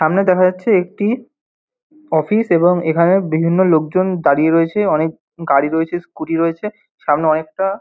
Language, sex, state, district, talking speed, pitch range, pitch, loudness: Bengali, male, West Bengal, North 24 Parganas, 140 wpm, 160-195 Hz, 175 Hz, -16 LUFS